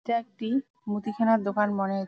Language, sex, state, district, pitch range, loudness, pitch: Bengali, female, West Bengal, Jalpaiguri, 205-235 Hz, -27 LUFS, 220 Hz